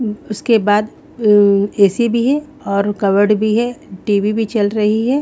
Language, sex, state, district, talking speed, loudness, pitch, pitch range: Hindi, female, Haryana, Rohtak, 170 wpm, -15 LUFS, 215 Hz, 205-235 Hz